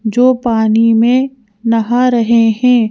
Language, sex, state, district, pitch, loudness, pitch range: Hindi, female, Madhya Pradesh, Bhopal, 230 Hz, -12 LUFS, 225-250 Hz